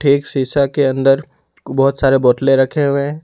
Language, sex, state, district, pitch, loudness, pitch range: Hindi, male, Jharkhand, Ranchi, 140 Hz, -15 LUFS, 135-140 Hz